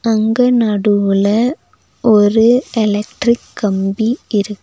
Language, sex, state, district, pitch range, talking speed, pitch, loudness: Tamil, female, Tamil Nadu, Nilgiris, 205-235 Hz, 80 wpm, 220 Hz, -14 LUFS